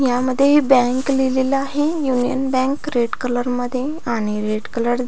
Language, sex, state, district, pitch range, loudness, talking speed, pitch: Marathi, female, Maharashtra, Pune, 245-275 Hz, -19 LUFS, 155 wpm, 255 Hz